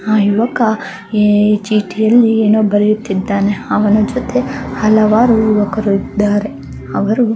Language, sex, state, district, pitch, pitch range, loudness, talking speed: Kannada, female, Karnataka, Dakshina Kannada, 215 Hz, 205-220 Hz, -13 LUFS, 100 wpm